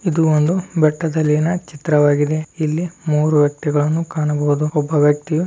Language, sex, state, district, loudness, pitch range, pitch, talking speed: Kannada, male, Karnataka, Dharwad, -17 LUFS, 150-160 Hz, 155 Hz, 120 wpm